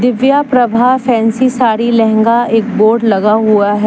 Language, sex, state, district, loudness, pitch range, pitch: Hindi, female, Jharkhand, Deoghar, -11 LUFS, 220-245 Hz, 230 Hz